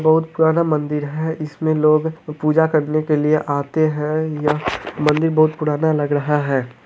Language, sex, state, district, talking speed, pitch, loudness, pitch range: Hindi, male, Bihar, Bhagalpur, 165 wpm, 155 Hz, -18 LUFS, 150-160 Hz